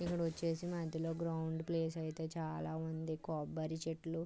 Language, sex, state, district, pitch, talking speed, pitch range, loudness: Telugu, female, Andhra Pradesh, Srikakulam, 160 Hz, 155 wpm, 160-165 Hz, -41 LUFS